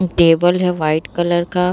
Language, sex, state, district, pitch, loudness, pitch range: Hindi, female, Bihar, Vaishali, 175 Hz, -16 LUFS, 165-180 Hz